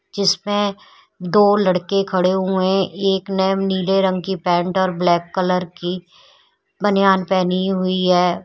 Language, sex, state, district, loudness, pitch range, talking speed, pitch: Hindi, female, Uttar Pradesh, Shamli, -18 LUFS, 180-195 Hz, 140 wpm, 190 Hz